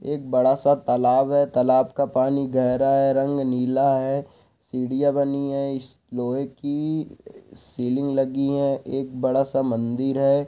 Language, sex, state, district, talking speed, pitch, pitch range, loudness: Hindi, male, Bihar, Saharsa, 145 wpm, 135 Hz, 130-140 Hz, -22 LUFS